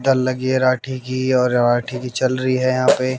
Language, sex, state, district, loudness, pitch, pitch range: Hindi, male, Haryana, Jhajjar, -18 LUFS, 130 Hz, 125-130 Hz